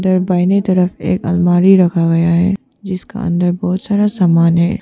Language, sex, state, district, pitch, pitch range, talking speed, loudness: Hindi, female, Arunachal Pradesh, Papum Pare, 180 Hz, 175-195 Hz, 160 wpm, -14 LUFS